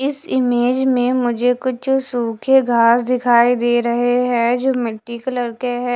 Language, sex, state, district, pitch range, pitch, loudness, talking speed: Hindi, female, Bihar, West Champaran, 240-255 Hz, 245 Hz, -17 LUFS, 160 wpm